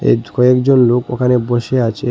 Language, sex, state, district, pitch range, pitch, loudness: Bengali, male, Assam, Hailakandi, 120-125 Hz, 125 Hz, -14 LUFS